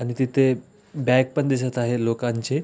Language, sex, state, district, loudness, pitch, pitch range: Marathi, male, Maharashtra, Aurangabad, -22 LUFS, 130 Hz, 120-135 Hz